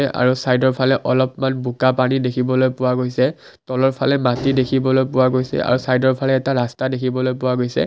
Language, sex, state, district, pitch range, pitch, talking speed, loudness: Assamese, male, Assam, Kamrup Metropolitan, 125-130 Hz, 130 Hz, 165 wpm, -18 LUFS